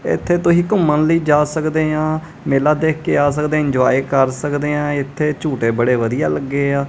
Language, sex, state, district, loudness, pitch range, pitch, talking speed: Punjabi, male, Punjab, Kapurthala, -17 LUFS, 140-155 Hz, 150 Hz, 190 wpm